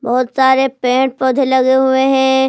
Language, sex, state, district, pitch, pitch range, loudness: Hindi, female, Jharkhand, Palamu, 265 Hz, 260-265 Hz, -13 LUFS